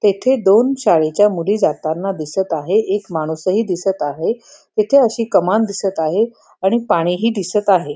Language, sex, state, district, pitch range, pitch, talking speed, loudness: Marathi, female, Maharashtra, Pune, 175-220 Hz, 195 Hz, 145 wpm, -17 LUFS